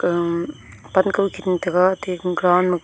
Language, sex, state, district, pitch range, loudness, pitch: Wancho, female, Arunachal Pradesh, Longding, 170-185 Hz, -20 LUFS, 180 Hz